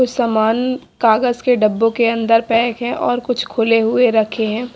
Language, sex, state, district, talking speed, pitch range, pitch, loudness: Hindi, female, Haryana, Jhajjar, 190 wpm, 225-245 Hz, 230 Hz, -16 LUFS